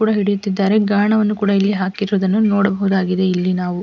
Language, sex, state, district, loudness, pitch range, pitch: Kannada, female, Karnataka, Mysore, -17 LUFS, 190-205 Hz, 200 Hz